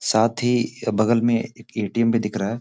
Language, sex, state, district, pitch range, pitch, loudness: Hindi, male, Uttar Pradesh, Gorakhpur, 110-120 Hz, 115 Hz, -22 LUFS